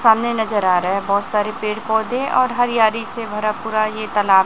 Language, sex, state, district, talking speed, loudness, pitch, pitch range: Hindi, female, Chhattisgarh, Raipur, 215 wpm, -19 LUFS, 215 Hz, 210-230 Hz